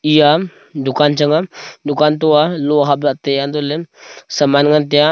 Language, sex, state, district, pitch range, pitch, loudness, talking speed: Wancho, male, Arunachal Pradesh, Longding, 145-155 Hz, 150 Hz, -14 LUFS, 200 wpm